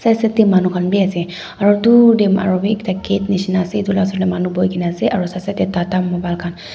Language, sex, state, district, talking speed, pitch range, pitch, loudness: Nagamese, female, Nagaland, Dimapur, 265 wpm, 180-205 Hz, 190 Hz, -16 LUFS